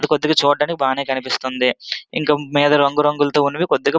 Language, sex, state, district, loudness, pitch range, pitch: Telugu, male, Andhra Pradesh, Srikakulam, -18 LUFS, 135-150 Hz, 145 Hz